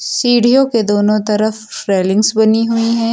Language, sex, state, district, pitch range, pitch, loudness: Hindi, female, Uttar Pradesh, Lucknow, 210-230 Hz, 220 Hz, -13 LUFS